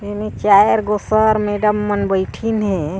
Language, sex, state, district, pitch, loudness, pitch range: Chhattisgarhi, female, Chhattisgarh, Sarguja, 210 Hz, -16 LUFS, 200-215 Hz